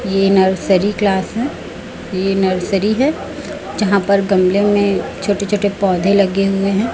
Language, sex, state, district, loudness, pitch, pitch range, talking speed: Hindi, female, Chhattisgarh, Raipur, -16 LUFS, 195 Hz, 190-205 Hz, 145 wpm